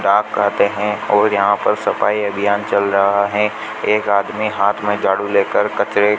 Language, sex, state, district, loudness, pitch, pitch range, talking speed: Hindi, male, Rajasthan, Bikaner, -16 LUFS, 100 Hz, 100-105 Hz, 185 wpm